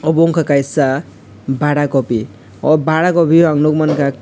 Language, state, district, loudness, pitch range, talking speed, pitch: Kokborok, Tripura, West Tripura, -14 LUFS, 135-155 Hz, 115 wpm, 145 Hz